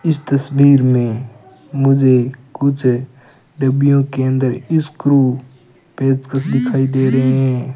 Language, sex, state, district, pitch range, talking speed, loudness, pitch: Hindi, male, Rajasthan, Bikaner, 130-140 Hz, 110 wpm, -15 LUFS, 130 Hz